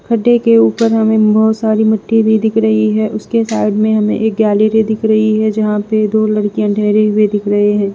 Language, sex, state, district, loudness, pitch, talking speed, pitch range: Hindi, female, Bihar, West Champaran, -12 LUFS, 215 Hz, 225 wpm, 210-220 Hz